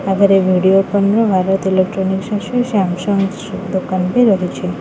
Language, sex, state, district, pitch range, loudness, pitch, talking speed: Odia, female, Odisha, Khordha, 185-200 Hz, -15 LUFS, 195 Hz, 150 wpm